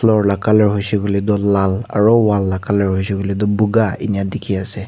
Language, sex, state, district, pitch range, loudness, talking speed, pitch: Nagamese, male, Nagaland, Kohima, 100-105 Hz, -16 LUFS, 220 wpm, 100 Hz